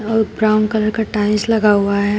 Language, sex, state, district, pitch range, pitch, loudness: Hindi, female, Uttar Pradesh, Shamli, 210-220 Hz, 215 Hz, -16 LUFS